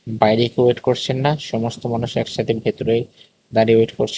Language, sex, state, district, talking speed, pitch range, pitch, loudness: Bengali, male, Tripura, West Tripura, 170 wpm, 115-125 Hz, 115 Hz, -19 LUFS